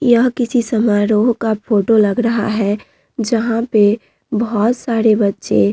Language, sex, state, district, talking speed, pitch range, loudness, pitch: Hindi, female, Bihar, Vaishali, 145 wpm, 210-235 Hz, -16 LUFS, 225 Hz